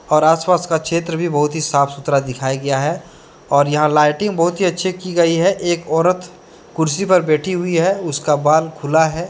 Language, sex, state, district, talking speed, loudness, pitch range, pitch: Hindi, male, Jharkhand, Deoghar, 215 wpm, -17 LUFS, 150-180 Hz, 160 Hz